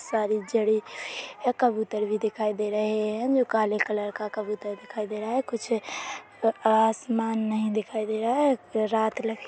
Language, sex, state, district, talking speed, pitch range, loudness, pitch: Hindi, female, Chhattisgarh, Korba, 165 wpm, 215-230 Hz, -27 LUFS, 220 Hz